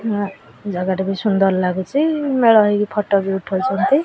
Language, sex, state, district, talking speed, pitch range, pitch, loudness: Odia, female, Odisha, Khordha, 160 wpm, 190-220 Hz, 200 Hz, -18 LUFS